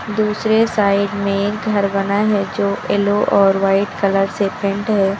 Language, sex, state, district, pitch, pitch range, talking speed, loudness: Hindi, female, Uttar Pradesh, Lucknow, 200 Hz, 195-210 Hz, 175 wpm, -17 LUFS